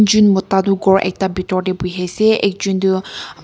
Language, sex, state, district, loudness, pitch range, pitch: Nagamese, female, Nagaland, Kohima, -16 LUFS, 185-195 Hz, 190 Hz